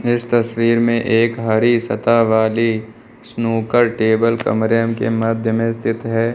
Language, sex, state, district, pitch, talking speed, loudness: Hindi, male, Uttar Pradesh, Lucknow, 115 Hz, 140 wpm, -17 LUFS